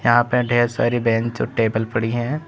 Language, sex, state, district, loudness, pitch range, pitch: Hindi, male, Uttar Pradesh, Saharanpur, -20 LUFS, 115-120 Hz, 120 Hz